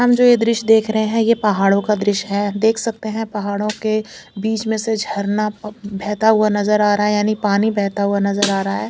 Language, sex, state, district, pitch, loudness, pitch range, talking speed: Hindi, female, Chandigarh, Chandigarh, 210 Hz, -17 LUFS, 205-220 Hz, 235 wpm